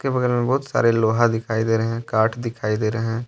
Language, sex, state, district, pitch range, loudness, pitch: Hindi, male, Jharkhand, Deoghar, 110-120 Hz, -21 LUFS, 115 Hz